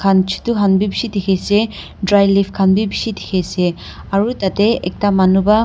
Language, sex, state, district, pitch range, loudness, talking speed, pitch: Nagamese, female, Nagaland, Dimapur, 190-210 Hz, -16 LUFS, 190 wpm, 195 Hz